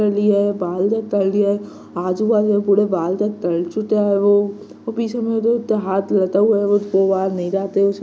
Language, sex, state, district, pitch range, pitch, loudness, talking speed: Hindi, male, Bihar, Vaishali, 195-210 Hz, 205 Hz, -18 LUFS, 150 wpm